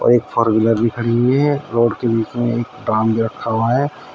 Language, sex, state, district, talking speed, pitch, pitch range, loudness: Hindi, male, Uttar Pradesh, Shamli, 230 wpm, 115 Hz, 115-120 Hz, -17 LUFS